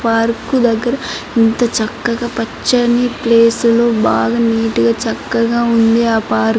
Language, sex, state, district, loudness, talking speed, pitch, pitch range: Telugu, female, Andhra Pradesh, Anantapur, -14 LUFS, 120 wpm, 230 Hz, 225-235 Hz